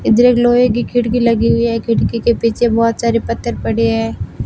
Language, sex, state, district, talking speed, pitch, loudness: Hindi, female, Rajasthan, Barmer, 215 wpm, 230 Hz, -14 LUFS